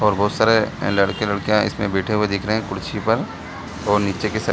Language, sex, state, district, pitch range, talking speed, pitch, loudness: Hindi, male, Bihar, Gaya, 100-105 Hz, 225 wpm, 105 Hz, -20 LUFS